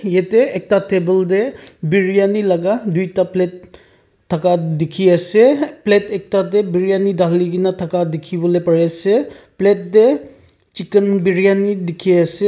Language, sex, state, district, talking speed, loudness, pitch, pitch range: Nagamese, male, Nagaland, Kohima, 135 wpm, -16 LUFS, 185 Hz, 180-200 Hz